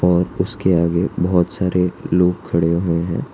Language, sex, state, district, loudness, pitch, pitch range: Hindi, male, Gujarat, Valsad, -18 LUFS, 90 Hz, 85-90 Hz